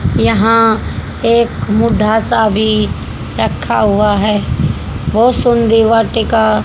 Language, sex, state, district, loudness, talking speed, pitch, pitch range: Hindi, female, Haryana, Jhajjar, -13 LUFS, 110 wpm, 220 Hz, 210-230 Hz